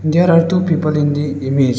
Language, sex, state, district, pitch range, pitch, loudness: English, male, Arunachal Pradesh, Lower Dibang Valley, 140-165 Hz, 155 Hz, -15 LUFS